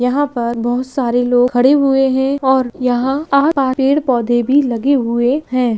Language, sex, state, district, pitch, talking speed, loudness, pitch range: Hindi, female, Bihar, Purnia, 255 Hz, 165 wpm, -14 LUFS, 245-275 Hz